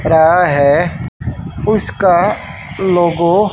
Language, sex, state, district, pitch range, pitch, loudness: Hindi, male, Haryana, Charkhi Dadri, 160-180 Hz, 170 Hz, -13 LUFS